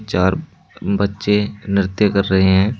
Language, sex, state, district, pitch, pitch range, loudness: Hindi, male, Uttar Pradesh, Shamli, 100 Hz, 95-105 Hz, -17 LUFS